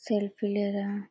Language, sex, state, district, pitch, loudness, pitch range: Hindi, female, Uttar Pradesh, Deoria, 205 Hz, -30 LUFS, 200-205 Hz